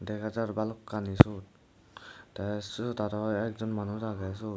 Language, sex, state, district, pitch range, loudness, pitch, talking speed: Chakma, male, Tripura, Dhalai, 105-110 Hz, -31 LUFS, 105 Hz, 145 wpm